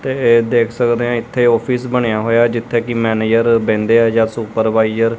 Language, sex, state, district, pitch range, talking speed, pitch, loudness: Punjabi, male, Punjab, Kapurthala, 115-120 Hz, 185 wpm, 115 Hz, -15 LUFS